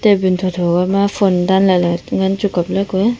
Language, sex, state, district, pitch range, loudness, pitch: Wancho, female, Arunachal Pradesh, Longding, 180-200 Hz, -15 LUFS, 190 Hz